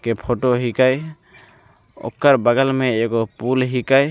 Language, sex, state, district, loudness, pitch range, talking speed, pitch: Maithili, male, Bihar, Begusarai, -18 LUFS, 120-135 Hz, 145 wpm, 125 Hz